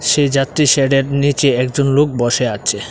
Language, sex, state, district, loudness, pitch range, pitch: Bengali, male, Tripura, Dhalai, -14 LUFS, 125-145 Hz, 135 Hz